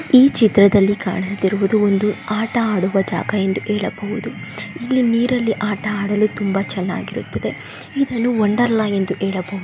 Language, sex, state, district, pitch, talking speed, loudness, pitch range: Kannada, female, Karnataka, Bellary, 205 Hz, 125 wpm, -18 LUFS, 195-225 Hz